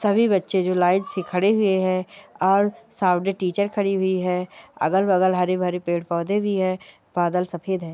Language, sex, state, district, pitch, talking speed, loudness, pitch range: Angika, female, Bihar, Madhepura, 185 Hz, 165 wpm, -22 LUFS, 180-200 Hz